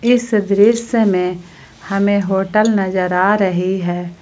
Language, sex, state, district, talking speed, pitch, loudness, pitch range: Hindi, female, Jharkhand, Palamu, 130 wpm, 195 Hz, -15 LUFS, 180-210 Hz